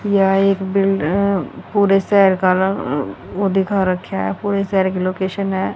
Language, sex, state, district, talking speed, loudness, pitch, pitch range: Hindi, female, Haryana, Rohtak, 175 wpm, -17 LUFS, 195 Hz, 185-195 Hz